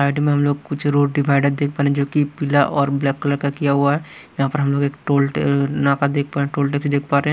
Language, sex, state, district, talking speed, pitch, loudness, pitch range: Hindi, male, Haryana, Rohtak, 310 wpm, 140 Hz, -19 LUFS, 140-145 Hz